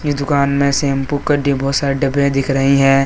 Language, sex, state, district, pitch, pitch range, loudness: Hindi, male, Jharkhand, Deoghar, 140 Hz, 135-140 Hz, -15 LUFS